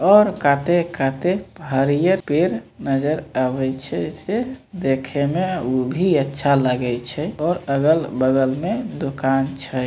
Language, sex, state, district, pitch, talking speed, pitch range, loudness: Maithili, male, Bihar, Samastipur, 140 Hz, 120 wpm, 135-175 Hz, -20 LUFS